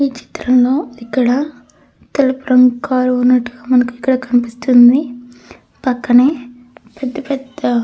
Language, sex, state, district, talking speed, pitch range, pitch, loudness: Telugu, female, Andhra Pradesh, Krishna, 100 wpm, 245-265 Hz, 250 Hz, -14 LUFS